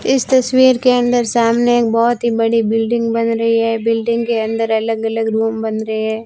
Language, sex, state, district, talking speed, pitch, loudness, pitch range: Hindi, female, Rajasthan, Barmer, 210 wpm, 230 Hz, -15 LUFS, 225-235 Hz